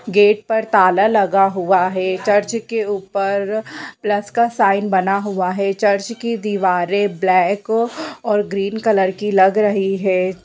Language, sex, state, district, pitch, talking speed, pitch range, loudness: Hindi, female, Bihar, Bhagalpur, 200 Hz, 150 wpm, 190-215 Hz, -17 LUFS